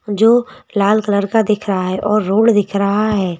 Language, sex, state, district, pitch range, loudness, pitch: Hindi, female, Madhya Pradesh, Bhopal, 200-215 Hz, -15 LUFS, 205 Hz